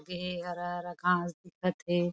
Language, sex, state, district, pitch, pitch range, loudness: Chhattisgarhi, female, Chhattisgarh, Korba, 175 Hz, 175-180 Hz, -33 LUFS